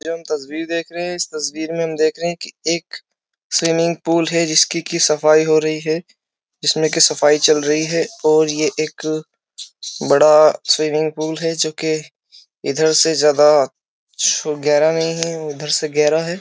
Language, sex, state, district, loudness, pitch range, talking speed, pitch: Hindi, male, Uttar Pradesh, Jyotiba Phule Nagar, -17 LUFS, 155-165 Hz, 170 wpm, 155 Hz